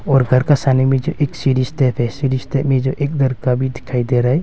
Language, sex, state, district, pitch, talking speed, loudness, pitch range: Hindi, male, Arunachal Pradesh, Longding, 130 Hz, 285 wpm, -17 LUFS, 130-135 Hz